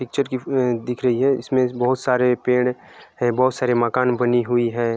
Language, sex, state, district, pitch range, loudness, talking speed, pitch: Hindi, male, Jharkhand, Sahebganj, 120-130 Hz, -20 LUFS, 195 wpm, 125 Hz